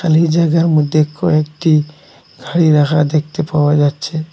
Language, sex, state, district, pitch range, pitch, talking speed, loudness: Bengali, male, Assam, Hailakandi, 150-165 Hz, 155 Hz, 125 wpm, -14 LUFS